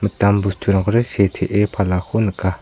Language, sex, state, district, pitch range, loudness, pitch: Garo, male, Meghalaya, South Garo Hills, 95-105 Hz, -18 LUFS, 100 Hz